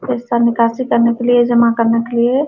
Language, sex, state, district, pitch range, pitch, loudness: Hindi, female, Uttar Pradesh, Jalaun, 235-245 Hz, 235 Hz, -14 LUFS